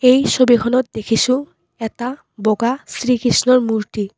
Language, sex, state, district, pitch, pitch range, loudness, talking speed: Assamese, female, Assam, Kamrup Metropolitan, 240 Hz, 225-255 Hz, -17 LUFS, 100 wpm